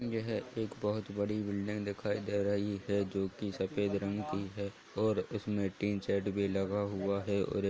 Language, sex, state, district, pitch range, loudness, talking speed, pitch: Hindi, male, Bihar, Lakhisarai, 100-105 Hz, -35 LUFS, 180 wpm, 100 Hz